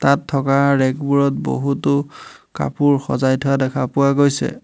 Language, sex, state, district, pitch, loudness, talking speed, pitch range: Assamese, male, Assam, Hailakandi, 140 Hz, -18 LUFS, 140 wpm, 135-140 Hz